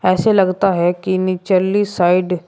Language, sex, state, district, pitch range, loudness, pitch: Hindi, male, Uttar Pradesh, Shamli, 180-195 Hz, -16 LUFS, 185 Hz